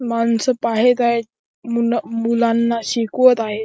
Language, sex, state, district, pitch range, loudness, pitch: Marathi, male, Maharashtra, Chandrapur, 230-240 Hz, -18 LUFS, 235 Hz